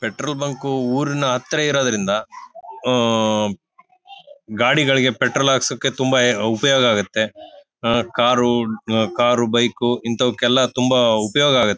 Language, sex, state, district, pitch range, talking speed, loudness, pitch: Kannada, male, Karnataka, Bellary, 115-140 Hz, 100 wpm, -18 LUFS, 125 Hz